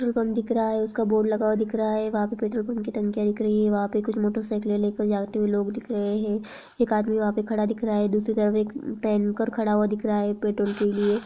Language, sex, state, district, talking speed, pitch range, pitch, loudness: Hindi, female, Jharkhand, Jamtara, 270 wpm, 210-220 Hz, 215 Hz, -25 LUFS